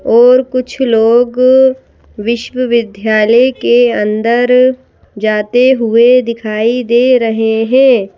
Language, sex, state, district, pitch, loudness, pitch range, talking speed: Hindi, female, Madhya Pradesh, Bhopal, 240 Hz, -10 LUFS, 225-255 Hz, 90 wpm